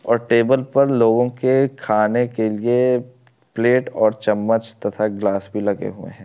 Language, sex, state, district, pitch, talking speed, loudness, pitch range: Hindi, male, Bihar, Darbhanga, 115 Hz, 165 wpm, -19 LUFS, 105-125 Hz